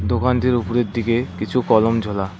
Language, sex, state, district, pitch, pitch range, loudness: Bengali, male, West Bengal, Cooch Behar, 115 Hz, 105-120 Hz, -19 LUFS